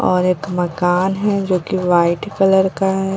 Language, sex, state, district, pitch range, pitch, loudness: Hindi, female, Bihar, Katihar, 180-195 Hz, 185 Hz, -17 LUFS